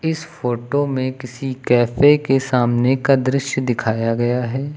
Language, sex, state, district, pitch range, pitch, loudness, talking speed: Hindi, male, Uttar Pradesh, Lucknow, 120-140 Hz, 130 Hz, -18 LUFS, 150 wpm